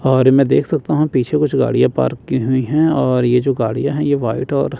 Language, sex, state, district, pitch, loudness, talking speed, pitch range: Hindi, male, Chandigarh, Chandigarh, 135 Hz, -16 LUFS, 275 wpm, 125-150 Hz